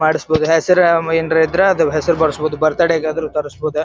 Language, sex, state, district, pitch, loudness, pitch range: Kannada, male, Karnataka, Dharwad, 160 Hz, -15 LUFS, 155-165 Hz